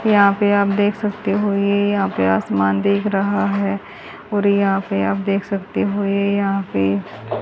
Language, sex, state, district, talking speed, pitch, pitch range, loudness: Hindi, female, Haryana, Rohtak, 195 wpm, 200 Hz, 195-205 Hz, -18 LUFS